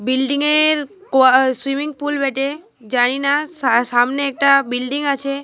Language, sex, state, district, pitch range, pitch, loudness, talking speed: Bengali, female, Jharkhand, Jamtara, 260-290 Hz, 275 Hz, -17 LUFS, 130 wpm